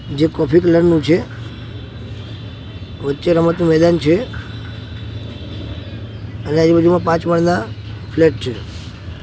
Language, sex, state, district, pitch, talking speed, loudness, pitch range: Gujarati, male, Gujarat, Gandhinagar, 115 Hz, 105 wpm, -15 LUFS, 105-165 Hz